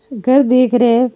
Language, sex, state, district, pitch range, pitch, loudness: Rajasthani, female, Rajasthan, Nagaur, 240-255 Hz, 250 Hz, -12 LUFS